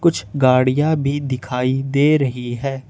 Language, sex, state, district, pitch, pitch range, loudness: Hindi, male, Jharkhand, Ranchi, 135 Hz, 130-145 Hz, -18 LUFS